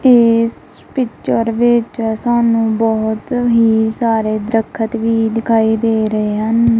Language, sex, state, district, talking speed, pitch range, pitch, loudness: Punjabi, female, Punjab, Kapurthala, 115 wpm, 220-235 Hz, 225 Hz, -15 LUFS